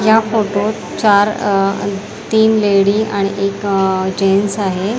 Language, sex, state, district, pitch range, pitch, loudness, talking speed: Marathi, female, Maharashtra, Mumbai Suburban, 195-215 Hz, 200 Hz, -15 LUFS, 120 wpm